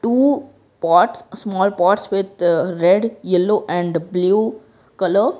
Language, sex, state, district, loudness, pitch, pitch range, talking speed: English, female, Gujarat, Valsad, -18 LUFS, 195 Hz, 175-215 Hz, 110 wpm